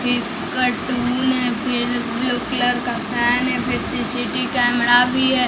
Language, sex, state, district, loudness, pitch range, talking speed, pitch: Hindi, female, Bihar, Patna, -19 LUFS, 245-250 Hz, 155 wpm, 245 Hz